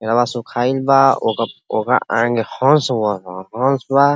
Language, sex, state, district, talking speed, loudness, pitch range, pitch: Bhojpuri, male, Uttar Pradesh, Ghazipur, 130 wpm, -17 LUFS, 115-135 Hz, 120 Hz